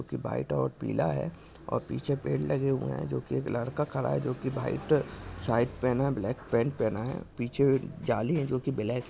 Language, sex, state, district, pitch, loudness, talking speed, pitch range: Hindi, male, Maharashtra, Dhule, 125 Hz, -30 LUFS, 225 wpm, 105-135 Hz